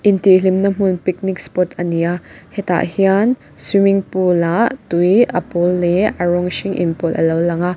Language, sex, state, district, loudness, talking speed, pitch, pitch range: Mizo, female, Mizoram, Aizawl, -16 LUFS, 175 wpm, 180 Hz, 175-195 Hz